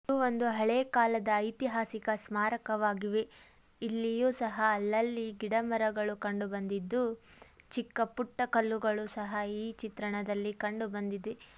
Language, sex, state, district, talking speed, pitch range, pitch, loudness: Kannada, female, Karnataka, Dharwad, 100 wpm, 210-230 Hz, 220 Hz, -33 LUFS